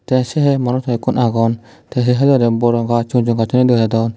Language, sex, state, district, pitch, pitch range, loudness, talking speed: Chakma, male, Tripura, Dhalai, 120 Hz, 115-130 Hz, -15 LUFS, 230 wpm